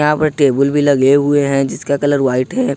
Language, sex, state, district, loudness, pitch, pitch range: Hindi, male, Jharkhand, Ranchi, -14 LUFS, 145 Hz, 140-150 Hz